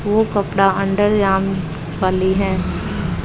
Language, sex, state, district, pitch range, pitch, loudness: Hindi, female, Bihar, West Champaran, 185-205 Hz, 195 Hz, -18 LUFS